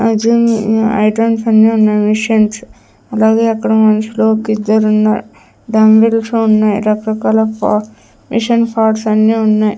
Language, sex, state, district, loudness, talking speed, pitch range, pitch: Telugu, female, Andhra Pradesh, Sri Satya Sai, -12 LUFS, 110 wpm, 215-225 Hz, 220 Hz